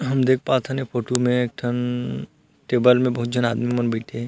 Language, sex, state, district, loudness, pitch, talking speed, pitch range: Chhattisgarhi, male, Chhattisgarh, Rajnandgaon, -21 LUFS, 125 Hz, 240 wpm, 120-125 Hz